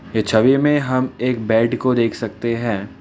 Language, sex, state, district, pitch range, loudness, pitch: Hindi, male, Assam, Kamrup Metropolitan, 110-130 Hz, -18 LUFS, 115 Hz